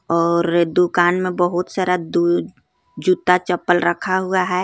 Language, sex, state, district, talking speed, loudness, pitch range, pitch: Hindi, female, Jharkhand, Garhwa, 140 wpm, -18 LUFS, 170-180 Hz, 175 Hz